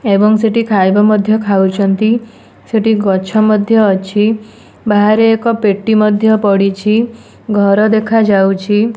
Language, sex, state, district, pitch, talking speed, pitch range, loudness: Odia, female, Odisha, Nuapada, 215 Hz, 115 wpm, 200-220 Hz, -12 LUFS